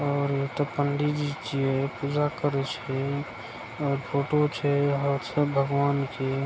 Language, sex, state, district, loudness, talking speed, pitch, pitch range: Maithili, male, Bihar, Begusarai, -27 LUFS, 120 wpm, 140 Hz, 140-145 Hz